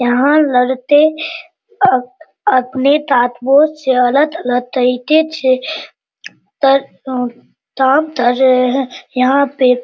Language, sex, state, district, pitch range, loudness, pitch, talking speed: Hindi, female, Bihar, Araria, 250-305 Hz, -14 LUFS, 265 Hz, 110 wpm